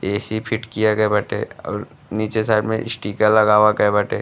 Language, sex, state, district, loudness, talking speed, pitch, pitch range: Bhojpuri, male, Uttar Pradesh, Gorakhpur, -19 LUFS, 185 wpm, 110 Hz, 105-110 Hz